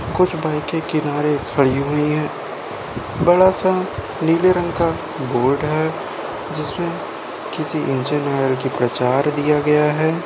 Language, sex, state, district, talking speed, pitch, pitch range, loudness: Hindi, male, Uttar Pradesh, Budaun, 130 wpm, 150 Hz, 135-160 Hz, -19 LUFS